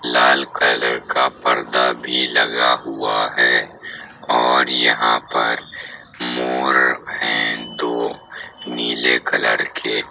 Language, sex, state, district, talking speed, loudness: Hindi, male, Uttar Pradesh, Jyotiba Phule Nagar, 100 wpm, -17 LUFS